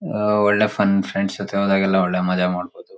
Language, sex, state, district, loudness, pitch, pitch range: Kannada, male, Karnataka, Shimoga, -19 LUFS, 100 Hz, 90-105 Hz